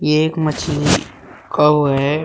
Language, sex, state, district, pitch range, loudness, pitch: Hindi, male, Uttar Pradesh, Shamli, 150-155 Hz, -16 LUFS, 150 Hz